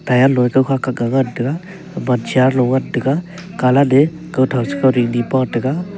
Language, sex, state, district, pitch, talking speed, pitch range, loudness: Wancho, male, Arunachal Pradesh, Longding, 130 Hz, 190 wpm, 125-145 Hz, -16 LUFS